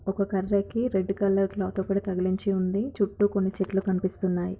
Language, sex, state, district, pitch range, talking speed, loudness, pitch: Telugu, female, Andhra Pradesh, Anantapur, 190-200 Hz, 155 wpm, -27 LUFS, 195 Hz